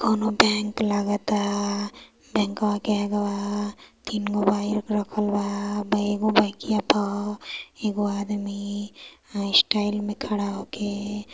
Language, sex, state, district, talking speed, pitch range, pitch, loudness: Hindi, male, Uttar Pradesh, Varanasi, 120 wpm, 205-210 Hz, 205 Hz, -25 LUFS